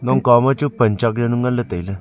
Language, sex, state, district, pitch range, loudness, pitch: Wancho, male, Arunachal Pradesh, Longding, 115-125 Hz, -17 LUFS, 120 Hz